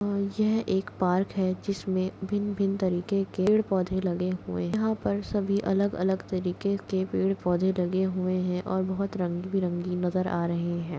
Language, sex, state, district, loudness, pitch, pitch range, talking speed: Hindi, female, Chhattisgarh, Kabirdham, -28 LUFS, 190 Hz, 180-200 Hz, 180 wpm